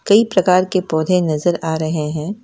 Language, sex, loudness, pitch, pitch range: Hindi, female, -17 LUFS, 175 Hz, 160-185 Hz